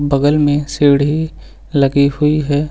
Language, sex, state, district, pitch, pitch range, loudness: Hindi, male, Uttar Pradesh, Lucknow, 145 Hz, 140-150 Hz, -14 LUFS